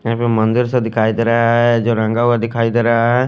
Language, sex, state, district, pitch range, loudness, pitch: Hindi, male, Odisha, Khordha, 115-120 Hz, -15 LUFS, 115 Hz